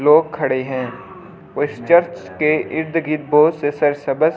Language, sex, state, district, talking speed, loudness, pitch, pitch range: Hindi, male, Delhi, New Delhi, 165 wpm, -18 LUFS, 155 Hz, 145-165 Hz